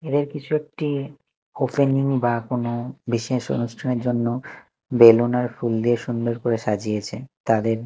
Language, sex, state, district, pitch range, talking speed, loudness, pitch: Bengali, male, Chhattisgarh, Raipur, 115-135 Hz, 130 wpm, -22 LUFS, 120 Hz